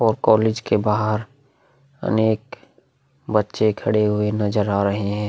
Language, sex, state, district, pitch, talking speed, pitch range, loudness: Hindi, male, Bihar, Vaishali, 110 Hz, 135 wpm, 105-115 Hz, -20 LUFS